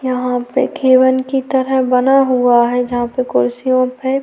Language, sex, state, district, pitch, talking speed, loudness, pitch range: Hindi, female, Chhattisgarh, Sukma, 255 Hz, 170 wpm, -14 LUFS, 245-265 Hz